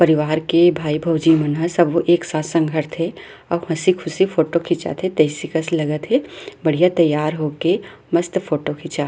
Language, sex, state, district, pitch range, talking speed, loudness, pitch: Chhattisgarhi, female, Chhattisgarh, Rajnandgaon, 155-175 Hz, 185 wpm, -19 LUFS, 165 Hz